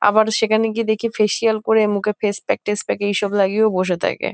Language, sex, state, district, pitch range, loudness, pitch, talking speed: Bengali, female, West Bengal, Kolkata, 205-220 Hz, -19 LUFS, 215 Hz, 220 wpm